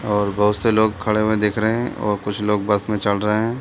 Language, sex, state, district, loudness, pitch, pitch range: Hindi, male, Bihar, Sitamarhi, -19 LUFS, 105 Hz, 105-110 Hz